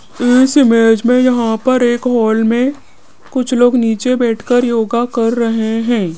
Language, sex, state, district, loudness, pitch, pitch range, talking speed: Hindi, female, Rajasthan, Jaipur, -13 LUFS, 240 Hz, 225-250 Hz, 155 wpm